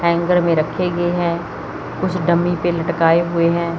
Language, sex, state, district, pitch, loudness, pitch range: Hindi, male, Chandigarh, Chandigarh, 170 Hz, -18 LUFS, 170-175 Hz